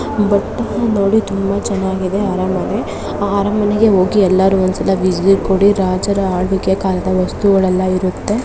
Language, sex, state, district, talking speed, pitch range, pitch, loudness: Kannada, female, Karnataka, Mysore, 120 wpm, 185-205 Hz, 195 Hz, -15 LUFS